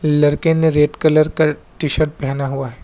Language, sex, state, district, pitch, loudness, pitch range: Hindi, male, Assam, Kamrup Metropolitan, 150 Hz, -16 LUFS, 145-155 Hz